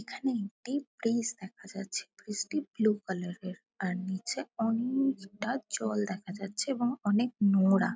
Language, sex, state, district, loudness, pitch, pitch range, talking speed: Bengali, female, West Bengal, Kolkata, -32 LUFS, 210 Hz, 195-245 Hz, 145 wpm